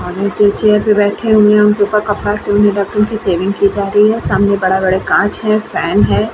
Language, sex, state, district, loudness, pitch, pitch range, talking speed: Hindi, female, Uttar Pradesh, Varanasi, -12 LUFS, 205 Hz, 200-210 Hz, 200 wpm